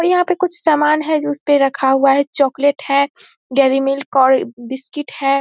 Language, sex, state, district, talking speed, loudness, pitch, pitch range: Hindi, female, Bihar, Saharsa, 200 wpm, -16 LUFS, 280 Hz, 270-310 Hz